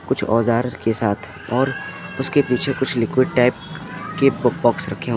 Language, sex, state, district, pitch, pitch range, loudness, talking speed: Hindi, male, Uttar Pradesh, Lucknow, 125 Hz, 115-135 Hz, -20 LUFS, 185 wpm